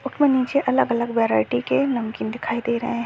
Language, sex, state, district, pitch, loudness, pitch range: Hindi, female, Uttar Pradesh, Deoria, 235 Hz, -21 LUFS, 225-260 Hz